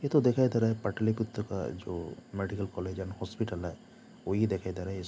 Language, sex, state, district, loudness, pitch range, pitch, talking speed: Hindi, male, Jharkhand, Jamtara, -32 LUFS, 95-110 Hz, 100 Hz, 270 wpm